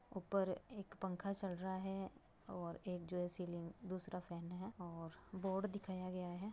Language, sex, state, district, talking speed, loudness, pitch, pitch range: Hindi, female, Bihar, Begusarai, 185 wpm, -46 LUFS, 185 Hz, 180-195 Hz